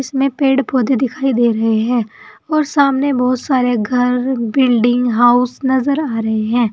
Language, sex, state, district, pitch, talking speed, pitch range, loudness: Hindi, female, Uttar Pradesh, Saharanpur, 250 Hz, 160 wpm, 240-270 Hz, -15 LUFS